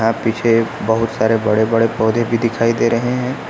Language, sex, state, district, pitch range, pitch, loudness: Hindi, male, Uttar Pradesh, Lucknow, 110-115 Hz, 115 Hz, -16 LUFS